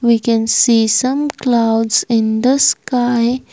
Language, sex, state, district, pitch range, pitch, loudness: English, female, Assam, Kamrup Metropolitan, 225-255 Hz, 235 Hz, -14 LUFS